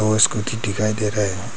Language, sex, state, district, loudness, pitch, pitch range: Hindi, male, Arunachal Pradesh, Papum Pare, -20 LUFS, 110 Hz, 105-110 Hz